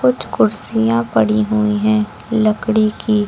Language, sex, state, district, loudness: Hindi, female, Uttar Pradesh, Lucknow, -16 LUFS